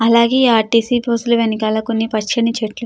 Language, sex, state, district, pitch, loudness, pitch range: Telugu, female, Andhra Pradesh, Krishna, 230 Hz, -15 LUFS, 220-235 Hz